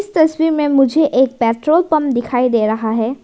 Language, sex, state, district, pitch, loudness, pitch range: Hindi, female, Arunachal Pradesh, Lower Dibang Valley, 270 Hz, -15 LUFS, 235-310 Hz